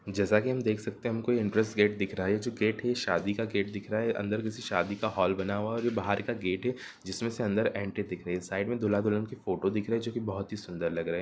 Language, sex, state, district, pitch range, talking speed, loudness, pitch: Hindi, male, Bihar, Gopalganj, 100-115 Hz, 315 wpm, -31 LUFS, 105 Hz